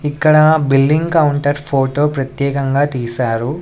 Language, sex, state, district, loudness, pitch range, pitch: Telugu, male, Andhra Pradesh, Sri Satya Sai, -14 LUFS, 135-150 Hz, 140 Hz